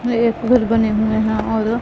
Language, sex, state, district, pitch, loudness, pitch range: Hindi, female, Punjab, Pathankot, 225 Hz, -17 LUFS, 220-235 Hz